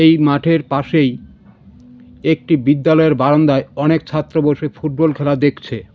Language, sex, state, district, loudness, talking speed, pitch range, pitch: Bengali, male, West Bengal, Cooch Behar, -15 LUFS, 130 wpm, 140-160 Hz, 145 Hz